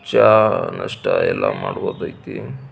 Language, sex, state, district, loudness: Kannada, male, Karnataka, Belgaum, -18 LUFS